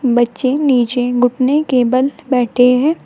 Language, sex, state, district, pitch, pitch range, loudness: Hindi, female, Uttar Pradesh, Shamli, 255 Hz, 245-275 Hz, -14 LUFS